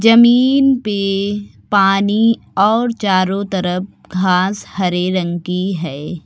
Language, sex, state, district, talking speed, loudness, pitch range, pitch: Hindi, male, Uttar Pradesh, Lucknow, 105 wpm, -15 LUFS, 180-210 Hz, 195 Hz